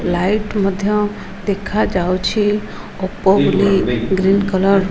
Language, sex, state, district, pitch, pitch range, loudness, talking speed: Odia, female, Odisha, Malkangiri, 195 Hz, 190-205 Hz, -17 LUFS, 110 wpm